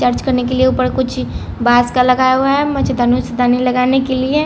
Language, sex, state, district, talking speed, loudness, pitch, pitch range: Hindi, female, Bihar, Patna, 215 wpm, -14 LUFS, 255 Hz, 245-260 Hz